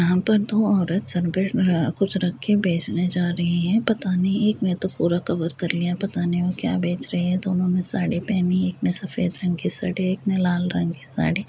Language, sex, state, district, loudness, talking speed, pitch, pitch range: Hindi, female, Uttar Pradesh, Deoria, -23 LUFS, 245 wpm, 180 Hz, 175-195 Hz